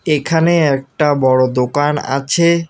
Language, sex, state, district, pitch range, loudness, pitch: Bengali, male, West Bengal, Alipurduar, 135-160 Hz, -14 LUFS, 145 Hz